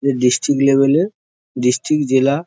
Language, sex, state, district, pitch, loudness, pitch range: Bengali, male, West Bengal, Jhargram, 140 Hz, -16 LUFS, 130-145 Hz